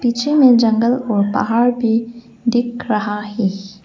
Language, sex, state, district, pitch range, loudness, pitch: Hindi, female, Arunachal Pradesh, Lower Dibang Valley, 210-240 Hz, -16 LUFS, 230 Hz